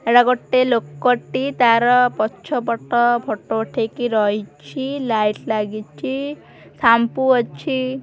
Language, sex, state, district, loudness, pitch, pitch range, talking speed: Odia, female, Odisha, Khordha, -19 LUFS, 240 Hz, 220-255 Hz, 90 wpm